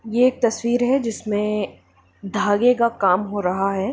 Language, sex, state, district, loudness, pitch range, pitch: Hindi, female, Jharkhand, Sahebganj, -20 LUFS, 195-235 Hz, 210 Hz